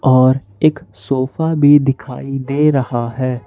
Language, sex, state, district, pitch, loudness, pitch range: Hindi, male, Jharkhand, Ranchi, 130 Hz, -15 LUFS, 130-145 Hz